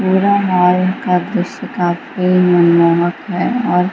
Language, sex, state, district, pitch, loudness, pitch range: Hindi, female, Bihar, Gaya, 180 Hz, -14 LUFS, 175-190 Hz